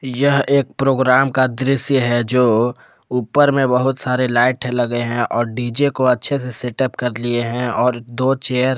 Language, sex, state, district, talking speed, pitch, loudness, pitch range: Hindi, male, Jharkhand, Palamu, 185 wpm, 125 Hz, -17 LUFS, 120-135 Hz